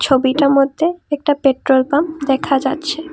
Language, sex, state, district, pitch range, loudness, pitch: Bengali, female, Assam, Kamrup Metropolitan, 270-315 Hz, -16 LUFS, 285 Hz